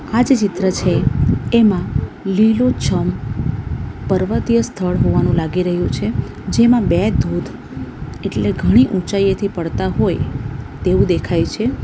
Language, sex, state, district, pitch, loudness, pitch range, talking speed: Gujarati, female, Gujarat, Valsad, 195 Hz, -17 LUFS, 180-230 Hz, 120 wpm